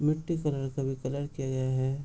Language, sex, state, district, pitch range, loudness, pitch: Hindi, male, Bihar, Gopalganj, 130-150 Hz, -31 LUFS, 135 Hz